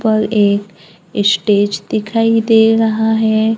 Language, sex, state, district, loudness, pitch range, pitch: Hindi, female, Maharashtra, Gondia, -13 LUFS, 205-220 Hz, 215 Hz